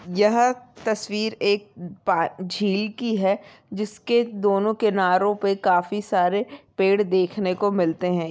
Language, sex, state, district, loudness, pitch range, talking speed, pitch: Hindi, female, Uttarakhand, Tehri Garhwal, -23 LUFS, 185-215 Hz, 125 wpm, 205 Hz